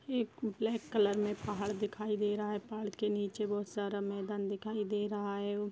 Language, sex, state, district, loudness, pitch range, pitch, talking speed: Hindi, female, Uttar Pradesh, Gorakhpur, -36 LUFS, 205-210 Hz, 210 Hz, 210 wpm